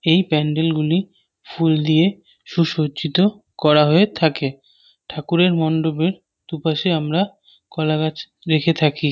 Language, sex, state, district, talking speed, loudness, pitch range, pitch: Bengali, male, West Bengal, North 24 Parganas, 105 wpm, -19 LUFS, 155-170 Hz, 160 Hz